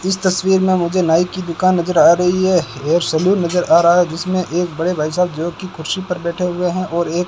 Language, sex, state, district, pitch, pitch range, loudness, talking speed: Hindi, male, Rajasthan, Bikaner, 180 Hz, 170-185 Hz, -16 LUFS, 265 wpm